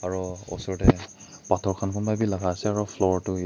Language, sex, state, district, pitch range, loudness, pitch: Nagamese, male, Nagaland, Kohima, 95-105 Hz, -26 LUFS, 95 Hz